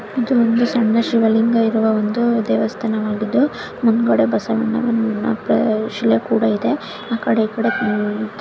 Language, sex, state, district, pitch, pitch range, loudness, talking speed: Kannada, female, Karnataka, Chamarajanagar, 225 Hz, 215-235 Hz, -18 LUFS, 130 wpm